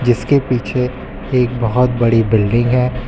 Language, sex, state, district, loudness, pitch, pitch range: Hindi, male, Uttar Pradesh, Lucknow, -15 LUFS, 120 Hz, 115-125 Hz